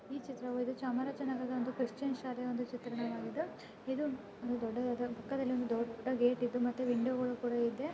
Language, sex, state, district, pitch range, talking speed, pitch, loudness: Kannada, male, Karnataka, Chamarajanagar, 240-260 Hz, 165 wpm, 245 Hz, -37 LUFS